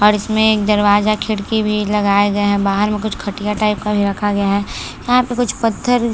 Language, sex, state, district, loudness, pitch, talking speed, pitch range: Hindi, female, Maharashtra, Chandrapur, -16 LUFS, 210 Hz, 225 wpm, 205-220 Hz